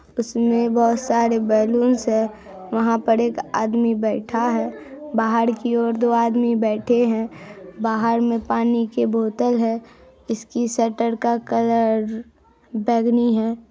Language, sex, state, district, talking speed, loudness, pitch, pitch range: Hindi, female, Bihar, Araria, 135 wpm, -20 LUFS, 230 Hz, 225-235 Hz